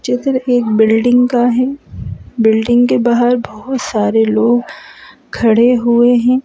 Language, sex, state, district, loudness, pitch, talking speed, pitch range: Hindi, male, Madhya Pradesh, Bhopal, -13 LUFS, 240 Hz, 130 wpm, 225-245 Hz